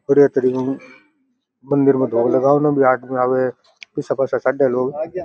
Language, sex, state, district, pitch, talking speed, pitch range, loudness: Rajasthani, male, Rajasthan, Nagaur, 135 Hz, 90 wpm, 130-145 Hz, -17 LUFS